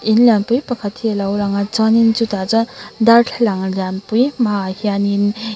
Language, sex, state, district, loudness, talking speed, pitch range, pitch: Mizo, female, Mizoram, Aizawl, -16 LUFS, 195 wpm, 200-230 Hz, 220 Hz